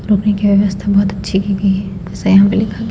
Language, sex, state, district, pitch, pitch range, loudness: Hindi, female, Madhya Pradesh, Bhopal, 200 Hz, 195-205 Hz, -14 LUFS